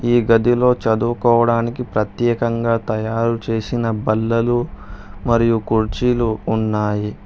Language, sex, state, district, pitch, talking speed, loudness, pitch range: Telugu, male, Telangana, Hyderabad, 115 Hz, 85 wpm, -18 LUFS, 110-120 Hz